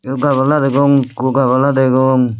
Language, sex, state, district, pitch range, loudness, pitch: Chakma, male, Tripura, Dhalai, 130-140 Hz, -13 LUFS, 130 Hz